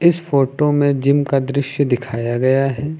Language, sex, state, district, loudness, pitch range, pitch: Hindi, male, Uttar Pradesh, Lucknow, -17 LUFS, 135-145 Hz, 140 Hz